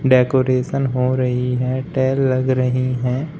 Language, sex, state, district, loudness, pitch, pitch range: Hindi, male, Uttar Pradesh, Shamli, -18 LUFS, 130 Hz, 125-130 Hz